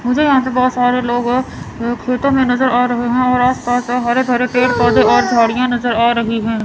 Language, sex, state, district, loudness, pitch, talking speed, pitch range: Hindi, female, Chandigarh, Chandigarh, -14 LUFS, 245 Hz, 225 wpm, 240-250 Hz